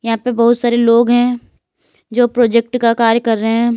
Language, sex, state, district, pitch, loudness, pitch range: Hindi, female, Uttar Pradesh, Lalitpur, 235 Hz, -13 LUFS, 230-240 Hz